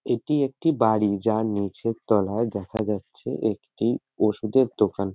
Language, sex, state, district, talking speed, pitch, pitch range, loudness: Bengali, male, West Bengal, North 24 Parganas, 130 wpm, 110 Hz, 105-115 Hz, -25 LUFS